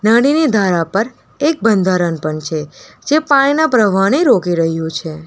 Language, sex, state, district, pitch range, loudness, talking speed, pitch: Gujarati, female, Gujarat, Valsad, 165-275 Hz, -14 LUFS, 150 wpm, 195 Hz